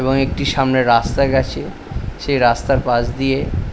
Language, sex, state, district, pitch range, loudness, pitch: Bengali, male, West Bengal, Paschim Medinipur, 120-135 Hz, -17 LUFS, 130 Hz